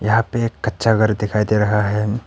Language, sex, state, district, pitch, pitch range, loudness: Hindi, male, Arunachal Pradesh, Papum Pare, 110 Hz, 105-115 Hz, -18 LUFS